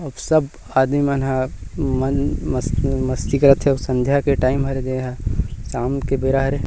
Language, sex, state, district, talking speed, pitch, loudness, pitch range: Chhattisgarhi, male, Chhattisgarh, Rajnandgaon, 145 wpm, 135 Hz, -20 LUFS, 130-140 Hz